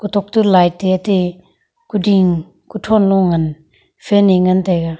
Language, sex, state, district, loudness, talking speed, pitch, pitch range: Wancho, female, Arunachal Pradesh, Longding, -14 LUFS, 170 wpm, 190 Hz, 180-205 Hz